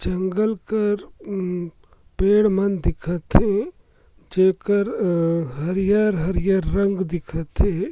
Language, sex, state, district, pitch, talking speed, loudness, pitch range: Surgujia, male, Chhattisgarh, Sarguja, 190 Hz, 90 wpm, -21 LUFS, 175-205 Hz